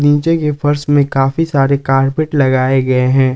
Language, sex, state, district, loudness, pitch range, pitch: Hindi, male, Jharkhand, Palamu, -13 LUFS, 135-145 Hz, 140 Hz